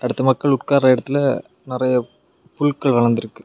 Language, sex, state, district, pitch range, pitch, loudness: Tamil, male, Tamil Nadu, Kanyakumari, 125-140 Hz, 130 Hz, -18 LUFS